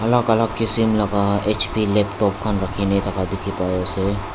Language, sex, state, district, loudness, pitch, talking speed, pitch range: Nagamese, male, Nagaland, Dimapur, -19 LUFS, 100 Hz, 180 wpm, 100-110 Hz